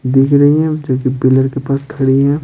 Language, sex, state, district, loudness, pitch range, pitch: Hindi, male, Bihar, Patna, -13 LUFS, 130-145 Hz, 135 Hz